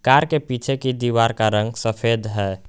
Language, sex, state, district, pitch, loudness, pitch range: Hindi, male, Jharkhand, Garhwa, 115 Hz, -20 LUFS, 110-130 Hz